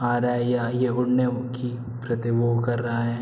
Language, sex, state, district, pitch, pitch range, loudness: Hindi, male, Bihar, Araria, 120 Hz, 120-125 Hz, -24 LUFS